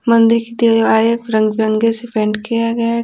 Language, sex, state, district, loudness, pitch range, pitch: Hindi, female, Bihar, Patna, -15 LUFS, 220-230 Hz, 230 Hz